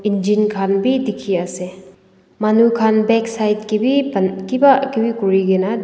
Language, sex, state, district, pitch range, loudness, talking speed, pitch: Nagamese, female, Nagaland, Dimapur, 195-230 Hz, -16 LUFS, 185 wpm, 215 Hz